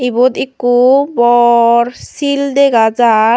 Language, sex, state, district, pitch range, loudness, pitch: Chakma, female, Tripura, Unakoti, 235-270 Hz, -11 LUFS, 245 Hz